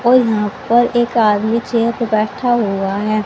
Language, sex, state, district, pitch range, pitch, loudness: Hindi, female, Haryana, Charkhi Dadri, 210-240 Hz, 230 Hz, -15 LUFS